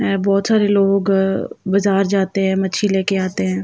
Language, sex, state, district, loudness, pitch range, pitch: Hindi, female, Uttar Pradesh, Jalaun, -17 LUFS, 190-195 Hz, 195 Hz